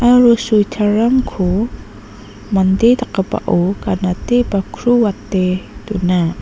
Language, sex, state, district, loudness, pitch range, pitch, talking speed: Garo, female, Meghalaya, North Garo Hills, -15 LUFS, 185-235 Hz, 200 Hz, 85 wpm